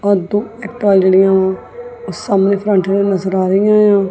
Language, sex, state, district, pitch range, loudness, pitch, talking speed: Punjabi, female, Punjab, Kapurthala, 190-210 Hz, -13 LUFS, 200 Hz, 175 wpm